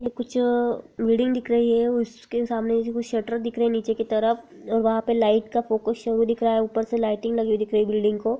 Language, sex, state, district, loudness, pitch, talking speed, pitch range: Hindi, female, West Bengal, Purulia, -23 LUFS, 230 Hz, 235 wpm, 225-235 Hz